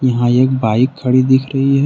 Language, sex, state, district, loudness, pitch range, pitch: Hindi, male, Jharkhand, Deoghar, -14 LUFS, 125-135 Hz, 130 Hz